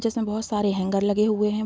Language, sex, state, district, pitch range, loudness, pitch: Hindi, female, Bihar, Sitamarhi, 205-215 Hz, -24 LUFS, 210 Hz